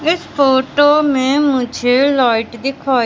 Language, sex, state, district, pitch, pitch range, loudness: Hindi, male, Madhya Pradesh, Katni, 270 Hz, 250-285 Hz, -14 LUFS